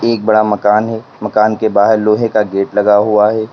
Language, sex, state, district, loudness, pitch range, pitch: Hindi, male, Uttar Pradesh, Lalitpur, -12 LUFS, 105-110 Hz, 110 Hz